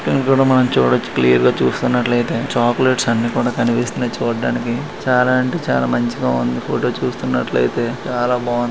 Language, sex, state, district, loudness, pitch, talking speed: Telugu, male, Karnataka, Dharwad, -17 LUFS, 120 Hz, 140 wpm